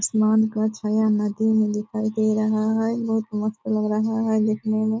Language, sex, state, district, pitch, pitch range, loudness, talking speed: Hindi, female, Bihar, Purnia, 215 Hz, 215-220 Hz, -22 LUFS, 215 wpm